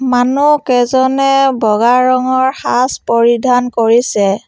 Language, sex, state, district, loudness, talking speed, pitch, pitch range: Assamese, female, Assam, Sonitpur, -12 LUFS, 80 wpm, 250 Hz, 235-260 Hz